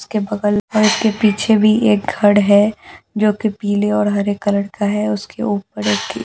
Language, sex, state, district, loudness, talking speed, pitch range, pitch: Hindi, female, Delhi, New Delhi, -16 LUFS, 210 wpm, 205-215 Hz, 210 Hz